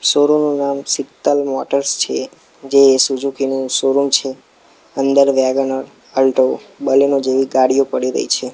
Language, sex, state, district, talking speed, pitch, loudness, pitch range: Gujarati, male, Gujarat, Gandhinagar, 140 wpm, 135 Hz, -16 LUFS, 135-140 Hz